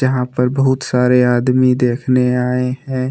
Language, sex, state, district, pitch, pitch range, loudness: Hindi, male, Jharkhand, Deoghar, 125 Hz, 125-130 Hz, -15 LUFS